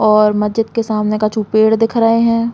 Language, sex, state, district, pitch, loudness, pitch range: Bundeli, female, Uttar Pradesh, Hamirpur, 220 Hz, -14 LUFS, 215-230 Hz